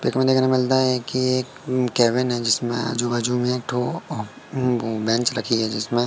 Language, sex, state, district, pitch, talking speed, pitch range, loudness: Hindi, male, Madhya Pradesh, Katni, 125 Hz, 195 wpm, 120-130 Hz, -22 LUFS